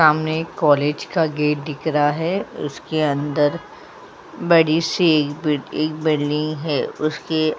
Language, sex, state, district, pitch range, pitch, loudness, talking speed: Hindi, female, Uttar Pradesh, Jyotiba Phule Nagar, 150-160 Hz, 155 Hz, -20 LUFS, 140 wpm